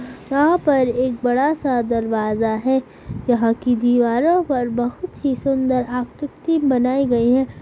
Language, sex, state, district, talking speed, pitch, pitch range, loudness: Hindi, female, Bihar, Saharsa, 140 wpm, 255 Hz, 240-275 Hz, -19 LUFS